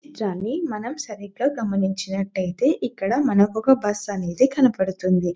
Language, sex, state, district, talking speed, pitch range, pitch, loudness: Telugu, female, Telangana, Nalgonda, 100 wpm, 190-260 Hz, 205 Hz, -22 LUFS